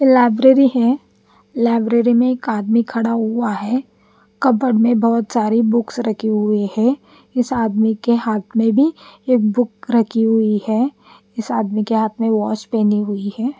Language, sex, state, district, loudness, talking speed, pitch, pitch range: Hindi, female, Chandigarh, Chandigarh, -17 LUFS, 165 wpm, 230 Hz, 220-245 Hz